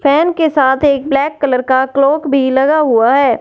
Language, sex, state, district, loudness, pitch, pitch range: Hindi, female, Punjab, Fazilka, -12 LUFS, 275 Hz, 265-295 Hz